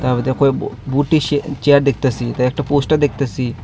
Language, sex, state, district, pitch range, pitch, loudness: Bengali, female, Tripura, Unakoti, 125-145 Hz, 140 Hz, -17 LUFS